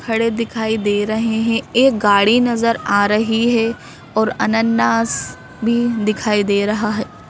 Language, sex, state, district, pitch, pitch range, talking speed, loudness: Hindi, female, Madhya Pradesh, Bhopal, 220 Hz, 205-230 Hz, 150 wpm, -17 LUFS